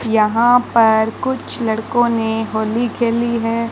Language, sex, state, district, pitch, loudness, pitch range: Hindi, female, Rajasthan, Bikaner, 230 Hz, -16 LUFS, 220-240 Hz